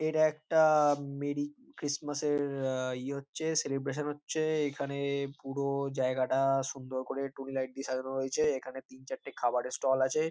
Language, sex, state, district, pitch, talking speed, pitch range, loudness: Bengali, male, West Bengal, North 24 Parganas, 140 Hz, 150 wpm, 130-145 Hz, -32 LUFS